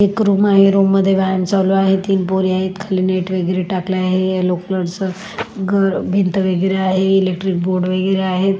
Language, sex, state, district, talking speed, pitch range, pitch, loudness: Marathi, female, Maharashtra, Solapur, 180 wpm, 185-195 Hz, 190 Hz, -16 LUFS